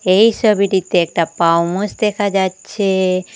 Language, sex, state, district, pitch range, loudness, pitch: Bengali, female, Assam, Hailakandi, 180-205 Hz, -16 LUFS, 190 Hz